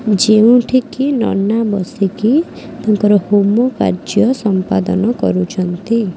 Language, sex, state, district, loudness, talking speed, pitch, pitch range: Odia, female, Odisha, Khordha, -14 LUFS, 85 wpm, 210 Hz, 190-235 Hz